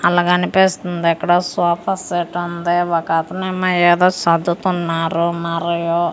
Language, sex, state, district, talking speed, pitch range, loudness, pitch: Telugu, female, Andhra Pradesh, Manyam, 125 wpm, 170-180 Hz, -17 LUFS, 175 Hz